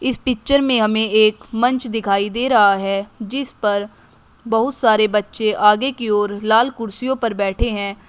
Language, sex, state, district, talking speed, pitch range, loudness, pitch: Hindi, female, Uttar Pradesh, Shamli, 165 wpm, 205-245 Hz, -18 LUFS, 220 Hz